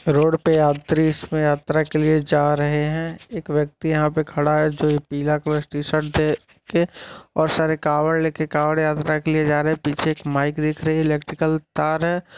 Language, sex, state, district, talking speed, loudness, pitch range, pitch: Hindi, male, Uttar Pradesh, Muzaffarnagar, 195 wpm, -21 LUFS, 150-160 Hz, 155 Hz